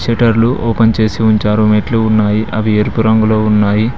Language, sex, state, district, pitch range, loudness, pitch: Telugu, male, Telangana, Mahabubabad, 105-115 Hz, -12 LUFS, 110 Hz